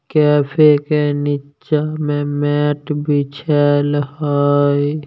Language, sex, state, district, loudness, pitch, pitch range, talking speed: Maithili, male, Bihar, Samastipur, -16 LUFS, 145 Hz, 145-150 Hz, 85 wpm